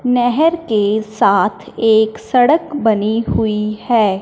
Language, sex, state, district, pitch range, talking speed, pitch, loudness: Hindi, male, Punjab, Fazilka, 215-250 Hz, 115 wpm, 225 Hz, -15 LUFS